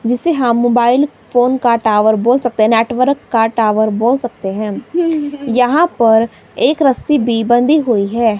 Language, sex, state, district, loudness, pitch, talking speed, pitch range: Hindi, female, Himachal Pradesh, Shimla, -13 LUFS, 240 Hz, 165 wpm, 225-265 Hz